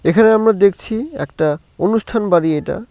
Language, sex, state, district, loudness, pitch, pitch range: Bengali, male, West Bengal, Cooch Behar, -16 LUFS, 205 Hz, 165-225 Hz